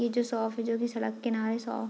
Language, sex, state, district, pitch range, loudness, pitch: Hindi, female, Bihar, Madhepura, 225-235 Hz, -31 LUFS, 230 Hz